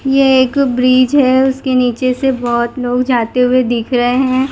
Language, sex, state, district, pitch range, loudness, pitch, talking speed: Hindi, female, Gujarat, Gandhinagar, 245-265 Hz, -13 LUFS, 255 Hz, 185 wpm